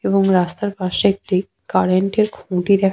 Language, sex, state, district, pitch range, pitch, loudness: Bengali, female, West Bengal, Paschim Medinipur, 185-200 Hz, 190 Hz, -18 LUFS